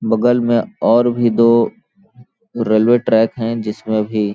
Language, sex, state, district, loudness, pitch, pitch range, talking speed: Hindi, male, Chhattisgarh, Balrampur, -15 LUFS, 115 Hz, 110-120 Hz, 150 wpm